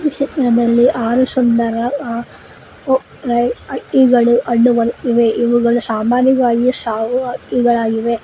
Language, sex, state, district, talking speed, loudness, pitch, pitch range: Kannada, female, Karnataka, Koppal, 95 wpm, -15 LUFS, 240 Hz, 235-255 Hz